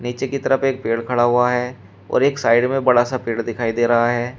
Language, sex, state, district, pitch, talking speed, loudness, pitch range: Hindi, male, Uttar Pradesh, Shamli, 120 Hz, 260 wpm, -18 LUFS, 115-130 Hz